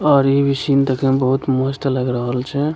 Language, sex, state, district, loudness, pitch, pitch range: Maithili, male, Bihar, Begusarai, -17 LUFS, 135 Hz, 130-140 Hz